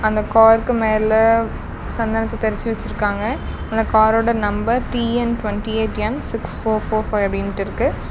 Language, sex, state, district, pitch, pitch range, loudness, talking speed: Tamil, female, Tamil Nadu, Namakkal, 220 Hz, 215-225 Hz, -18 LUFS, 140 wpm